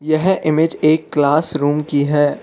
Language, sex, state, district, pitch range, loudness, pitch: Hindi, male, Arunachal Pradesh, Lower Dibang Valley, 145-155 Hz, -15 LUFS, 155 Hz